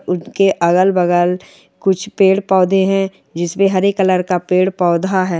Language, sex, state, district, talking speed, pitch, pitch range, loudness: Hindi, female, Chhattisgarh, Rajnandgaon, 135 wpm, 185 Hz, 180-195 Hz, -15 LUFS